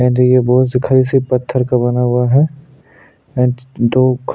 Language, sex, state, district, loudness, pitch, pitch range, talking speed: Hindi, male, Chhattisgarh, Sukma, -14 LUFS, 125 Hz, 125-130 Hz, 195 wpm